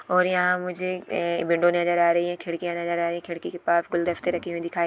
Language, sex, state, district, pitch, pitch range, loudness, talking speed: Hindi, female, Chhattisgarh, Jashpur, 175 Hz, 170-175 Hz, -25 LUFS, 260 wpm